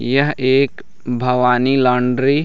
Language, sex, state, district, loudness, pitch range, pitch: Hindi, male, Chhattisgarh, Raigarh, -16 LUFS, 125-135 Hz, 130 Hz